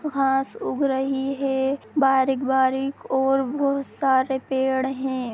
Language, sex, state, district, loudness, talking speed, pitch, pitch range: Hindi, female, Bihar, Sitamarhi, -23 LUFS, 125 wpm, 270 Hz, 265-275 Hz